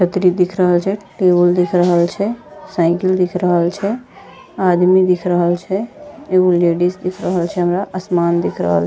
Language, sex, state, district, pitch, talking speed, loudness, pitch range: Angika, female, Bihar, Bhagalpur, 180 Hz, 150 wpm, -16 LUFS, 175-185 Hz